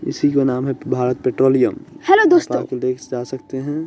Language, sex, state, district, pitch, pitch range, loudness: Hindi, male, Bihar, West Champaran, 130 Hz, 125-145 Hz, -18 LUFS